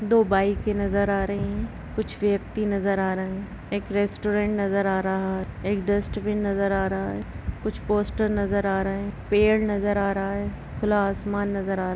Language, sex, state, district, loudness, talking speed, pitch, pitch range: Hindi, female, Bihar, Gopalganj, -25 LUFS, 205 wpm, 200 Hz, 195-205 Hz